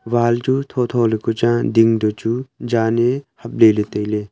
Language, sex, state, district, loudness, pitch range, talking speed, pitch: Wancho, male, Arunachal Pradesh, Longding, -18 LUFS, 110-120 Hz, 210 wpm, 115 Hz